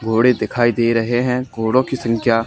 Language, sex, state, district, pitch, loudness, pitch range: Hindi, male, Haryana, Charkhi Dadri, 115 Hz, -17 LUFS, 115-125 Hz